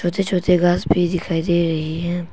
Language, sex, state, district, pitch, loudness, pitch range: Hindi, female, Arunachal Pradesh, Papum Pare, 175 Hz, -19 LUFS, 170-180 Hz